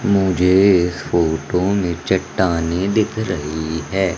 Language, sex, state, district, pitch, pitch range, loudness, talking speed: Hindi, male, Madhya Pradesh, Umaria, 90 Hz, 85-95 Hz, -18 LUFS, 115 wpm